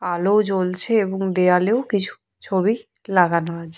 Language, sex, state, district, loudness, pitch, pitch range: Bengali, female, West Bengal, Purulia, -20 LUFS, 190 Hz, 180-205 Hz